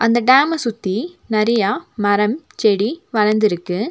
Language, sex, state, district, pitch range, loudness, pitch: Tamil, female, Tamil Nadu, Nilgiris, 205-240 Hz, -17 LUFS, 215 Hz